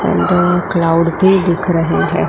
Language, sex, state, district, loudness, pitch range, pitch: Hindi, female, Gujarat, Gandhinagar, -13 LUFS, 170-185 Hz, 175 Hz